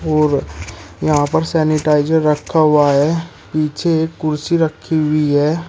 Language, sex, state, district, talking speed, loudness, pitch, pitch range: Hindi, male, Uttar Pradesh, Shamli, 135 wpm, -16 LUFS, 155 Hz, 145-160 Hz